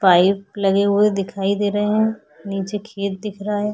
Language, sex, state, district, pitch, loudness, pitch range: Hindi, female, Bihar, Vaishali, 200 Hz, -20 LUFS, 195-210 Hz